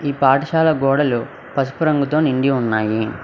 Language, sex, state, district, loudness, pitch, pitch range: Telugu, male, Telangana, Hyderabad, -18 LUFS, 135 Hz, 120-150 Hz